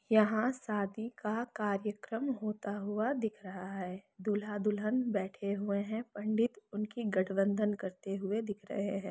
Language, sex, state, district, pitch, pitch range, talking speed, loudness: Hindi, female, Chhattisgarh, Sukma, 210 Hz, 200-220 Hz, 140 wpm, -35 LUFS